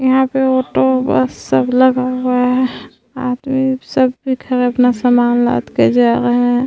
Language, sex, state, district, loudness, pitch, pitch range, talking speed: Hindi, female, Uttar Pradesh, Varanasi, -14 LUFS, 250 Hz, 240-260 Hz, 135 wpm